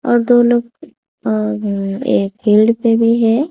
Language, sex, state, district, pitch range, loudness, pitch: Hindi, female, Odisha, Khordha, 215-240 Hz, -14 LUFS, 230 Hz